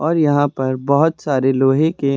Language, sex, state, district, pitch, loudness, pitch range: Hindi, male, Uttar Pradesh, Lucknow, 140 Hz, -16 LUFS, 135-155 Hz